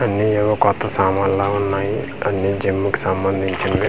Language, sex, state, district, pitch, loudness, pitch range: Telugu, male, Andhra Pradesh, Manyam, 100 Hz, -19 LUFS, 95-100 Hz